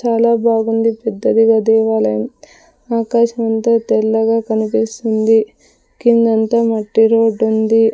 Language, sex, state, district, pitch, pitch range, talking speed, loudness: Telugu, female, Andhra Pradesh, Sri Satya Sai, 225 Hz, 220-230 Hz, 90 wpm, -14 LUFS